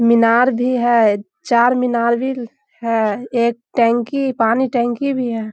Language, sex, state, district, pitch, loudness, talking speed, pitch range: Hindi, female, Bihar, Samastipur, 235 Hz, -16 LUFS, 130 wpm, 230-250 Hz